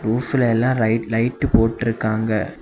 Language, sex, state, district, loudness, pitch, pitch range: Tamil, male, Tamil Nadu, Kanyakumari, -19 LUFS, 115 Hz, 110-120 Hz